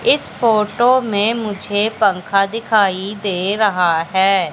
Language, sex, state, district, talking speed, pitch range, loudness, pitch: Hindi, female, Madhya Pradesh, Katni, 120 wpm, 190-220 Hz, -16 LUFS, 205 Hz